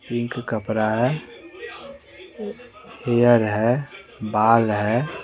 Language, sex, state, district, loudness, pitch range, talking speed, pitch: Hindi, male, Bihar, West Champaran, -21 LUFS, 110-145 Hz, 80 wpm, 120 Hz